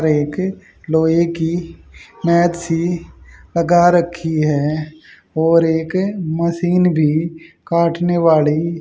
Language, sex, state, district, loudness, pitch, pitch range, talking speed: Hindi, male, Haryana, Jhajjar, -17 LUFS, 165 Hz, 160-175 Hz, 95 wpm